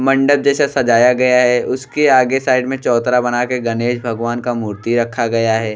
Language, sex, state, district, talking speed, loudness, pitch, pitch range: Bhojpuri, male, Uttar Pradesh, Deoria, 195 wpm, -15 LUFS, 125 Hz, 115-130 Hz